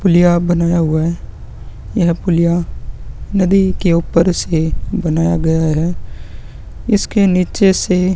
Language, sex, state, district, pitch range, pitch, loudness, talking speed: Hindi, male, Uttarakhand, Tehri Garhwal, 170-190 Hz, 175 Hz, -15 LUFS, 125 wpm